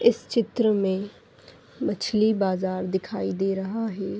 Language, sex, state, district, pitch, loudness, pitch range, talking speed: Hindi, female, Uttar Pradesh, Etah, 200 Hz, -25 LUFS, 190-220 Hz, 130 wpm